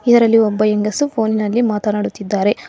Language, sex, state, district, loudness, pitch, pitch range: Kannada, female, Karnataka, Bangalore, -16 LUFS, 215 Hz, 210-230 Hz